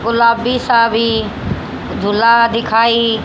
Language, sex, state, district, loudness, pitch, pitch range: Hindi, female, Haryana, Charkhi Dadri, -14 LUFS, 230 Hz, 225-235 Hz